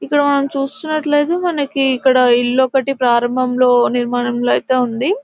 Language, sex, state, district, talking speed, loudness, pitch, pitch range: Telugu, female, Telangana, Nalgonda, 125 wpm, -15 LUFS, 260 Hz, 245-285 Hz